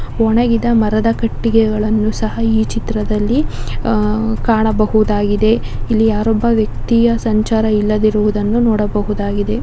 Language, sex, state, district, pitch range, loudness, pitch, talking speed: Kannada, female, Karnataka, Dakshina Kannada, 210-225 Hz, -15 LUFS, 215 Hz, 85 wpm